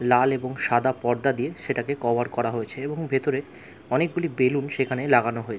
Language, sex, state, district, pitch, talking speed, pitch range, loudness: Bengali, male, West Bengal, Jalpaiguri, 130 Hz, 180 wpm, 120-140 Hz, -24 LUFS